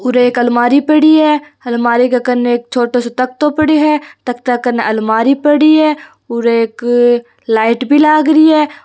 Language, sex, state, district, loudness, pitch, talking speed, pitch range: Hindi, female, Rajasthan, Churu, -11 LUFS, 250 Hz, 175 wpm, 240-300 Hz